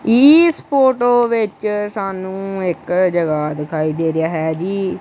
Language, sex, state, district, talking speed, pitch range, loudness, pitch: Punjabi, male, Punjab, Kapurthala, 130 wpm, 160-230 Hz, -16 LUFS, 190 Hz